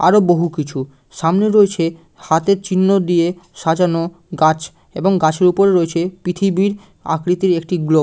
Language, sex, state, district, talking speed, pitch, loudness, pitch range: Bengali, male, West Bengal, Malda, 140 wpm, 175 Hz, -16 LUFS, 165-190 Hz